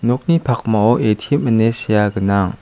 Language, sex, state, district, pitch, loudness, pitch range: Garo, male, Meghalaya, South Garo Hills, 115 Hz, -16 LUFS, 105-125 Hz